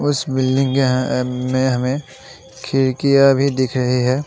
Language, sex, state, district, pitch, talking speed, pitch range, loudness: Hindi, male, Assam, Sonitpur, 130 Hz, 155 wpm, 130-135 Hz, -17 LUFS